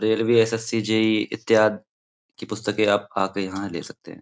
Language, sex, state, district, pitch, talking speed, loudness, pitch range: Hindi, male, Uttar Pradesh, Gorakhpur, 110 Hz, 170 wpm, -22 LUFS, 100-110 Hz